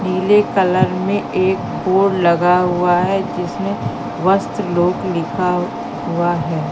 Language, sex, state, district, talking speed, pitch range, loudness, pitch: Hindi, female, Madhya Pradesh, Katni, 125 wpm, 175-190 Hz, -17 LUFS, 180 Hz